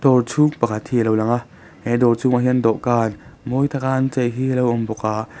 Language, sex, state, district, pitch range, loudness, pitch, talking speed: Mizo, male, Mizoram, Aizawl, 115-130 Hz, -19 LUFS, 125 Hz, 245 wpm